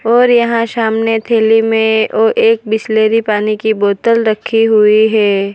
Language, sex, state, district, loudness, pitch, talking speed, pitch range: Hindi, female, Gujarat, Valsad, -12 LUFS, 220 Hz, 150 wpm, 215-225 Hz